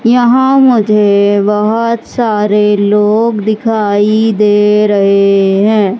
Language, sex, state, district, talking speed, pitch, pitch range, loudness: Hindi, male, Madhya Pradesh, Katni, 90 wpm, 210 Hz, 205-225 Hz, -10 LUFS